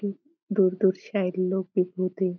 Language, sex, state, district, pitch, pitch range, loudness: Marathi, female, Maharashtra, Aurangabad, 190 Hz, 185-200 Hz, -26 LUFS